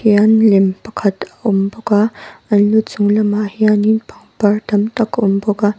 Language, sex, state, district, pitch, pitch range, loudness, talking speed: Mizo, female, Mizoram, Aizawl, 210 Hz, 205-220 Hz, -15 LUFS, 185 wpm